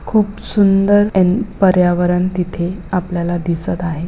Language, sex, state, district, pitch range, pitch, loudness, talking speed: Marathi, female, Maharashtra, Pune, 175-200 Hz, 180 Hz, -15 LUFS, 115 wpm